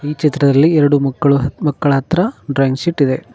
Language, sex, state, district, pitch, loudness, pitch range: Kannada, male, Karnataka, Koppal, 145 Hz, -15 LUFS, 135-155 Hz